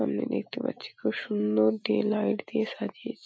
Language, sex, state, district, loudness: Bengali, female, West Bengal, Paschim Medinipur, -29 LUFS